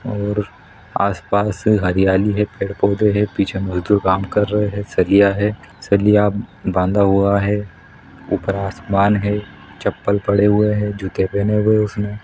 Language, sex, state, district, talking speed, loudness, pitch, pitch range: Hindi, male, Chhattisgarh, Raigarh, 150 wpm, -18 LUFS, 100 Hz, 100-105 Hz